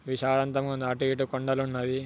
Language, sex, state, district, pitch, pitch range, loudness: Telugu, male, Telangana, Nalgonda, 135 Hz, 130-135 Hz, -28 LUFS